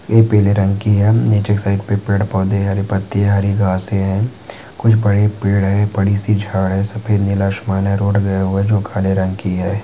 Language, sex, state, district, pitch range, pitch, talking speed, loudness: Hindi, male, Maharashtra, Dhule, 100-105 Hz, 100 Hz, 230 wpm, -16 LUFS